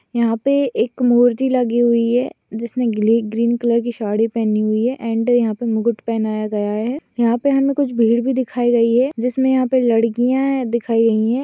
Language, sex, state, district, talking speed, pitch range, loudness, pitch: Hindi, female, Maharashtra, Chandrapur, 215 wpm, 225-250 Hz, -17 LUFS, 235 Hz